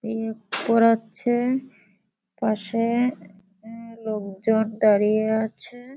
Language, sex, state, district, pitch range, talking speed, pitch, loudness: Bengali, female, West Bengal, Kolkata, 215-235 Hz, 70 wpm, 225 Hz, -23 LUFS